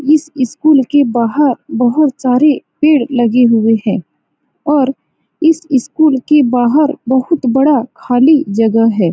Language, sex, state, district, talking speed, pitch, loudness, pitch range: Hindi, female, Bihar, Saran, 130 wpm, 265 Hz, -12 LUFS, 240-300 Hz